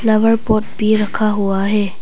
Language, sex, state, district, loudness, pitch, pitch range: Hindi, female, Arunachal Pradesh, Papum Pare, -16 LUFS, 215 Hz, 205-220 Hz